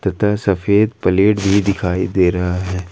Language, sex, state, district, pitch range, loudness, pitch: Hindi, male, Jharkhand, Ranchi, 90-100 Hz, -16 LUFS, 95 Hz